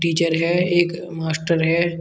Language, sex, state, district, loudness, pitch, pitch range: Hindi, male, Uttar Pradesh, Shamli, -20 LUFS, 170 Hz, 165-175 Hz